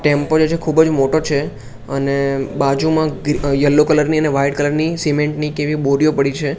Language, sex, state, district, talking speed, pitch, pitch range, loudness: Gujarati, male, Gujarat, Gandhinagar, 190 wpm, 145 Hz, 140-155 Hz, -16 LUFS